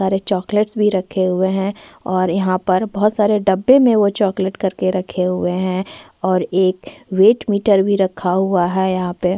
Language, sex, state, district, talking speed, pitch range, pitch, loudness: Hindi, female, Chhattisgarh, Korba, 185 wpm, 185-205 Hz, 190 Hz, -17 LUFS